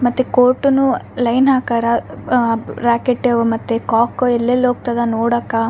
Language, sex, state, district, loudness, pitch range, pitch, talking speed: Kannada, female, Karnataka, Raichur, -16 LUFS, 235-250 Hz, 240 Hz, 125 wpm